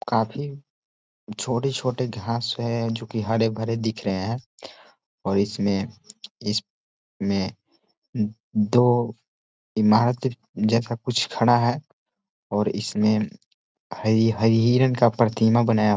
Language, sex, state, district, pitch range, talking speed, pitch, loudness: Hindi, male, Chhattisgarh, Korba, 105-120 Hz, 100 wpm, 115 Hz, -23 LUFS